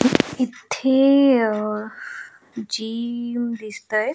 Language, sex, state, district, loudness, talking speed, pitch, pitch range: Marathi, female, Goa, North and South Goa, -21 LUFS, 60 wpm, 240 Hz, 215-265 Hz